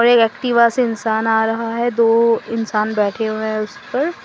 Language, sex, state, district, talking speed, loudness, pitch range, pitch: Hindi, female, Assam, Sonitpur, 200 wpm, -17 LUFS, 220-235 Hz, 230 Hz